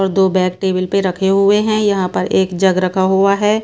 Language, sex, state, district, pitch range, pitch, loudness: Hindi, female, Bihar, Katihar, 185-200 Hz, 190 Hz, -15 LUFS